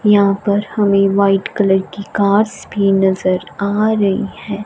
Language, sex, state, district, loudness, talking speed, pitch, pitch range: Hindi, female, Punjab, Fazilka, -15 LUFS, 155 wpm, 200 Hz, 195-205 Hz